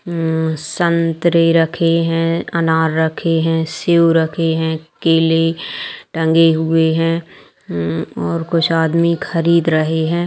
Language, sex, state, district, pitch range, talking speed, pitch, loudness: Hindi, female, Bihar, Purnia, 160-170 Hz, 125 wpm, 165 Hz, -16 LUFS